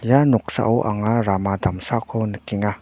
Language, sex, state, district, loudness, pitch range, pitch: Garo, male, Meghalaya, North Garo Hills, -21 LUFS, 105-115 Hz, 110 Hz